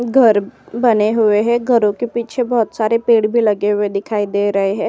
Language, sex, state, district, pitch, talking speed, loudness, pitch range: Hindi, female, Uttar Pradesh, Jyotiba Phule Nagar, 220 Hz, 210 wpm, -16 LUFS, 205-235 Hz